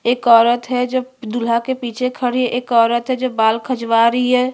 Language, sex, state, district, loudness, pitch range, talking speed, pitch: Hindi, female, Chhattisgarh, Bastar, -16 LUFS, 235-255 Hz, 225 wpm, 245 Hz